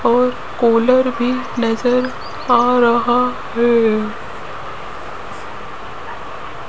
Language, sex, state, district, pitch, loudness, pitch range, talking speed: Hindi, female, Rajasthan, Jaipur, 240 Hz, -16 LUFS, 235-250 Hz, 65 wpm